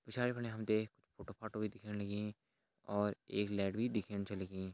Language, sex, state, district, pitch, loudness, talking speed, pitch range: Hindi, male, Uttarakhand, Tehri Garhwal, 105 Hz, -40 LUFS, 215 wpm, 100-110 Hz